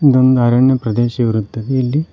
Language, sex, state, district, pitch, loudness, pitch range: Kannada, male, Karnataka, Koppal, 125 Hz, -14 LUFS, 120-130 Hz